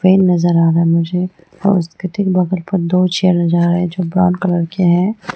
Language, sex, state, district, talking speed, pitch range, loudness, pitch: Hindi, female, Arunachal Pradesh, Lower Dibang Valley, 245 wpm, 170-185 Hz, -15 LUFS, 180 Hz